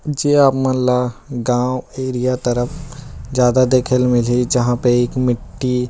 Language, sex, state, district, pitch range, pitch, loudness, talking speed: Chhattisgarhi, male, Chhattisgarh, Rajnandgaon, 125-130 Hz, 125 Hz, -17 LUFS, 155 wpm